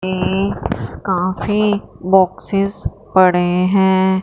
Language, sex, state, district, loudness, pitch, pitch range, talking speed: Hindi, female, Punjab, Fazilka, -16 LUFS, 190 Hz, 185-195 Hz, 70 wpm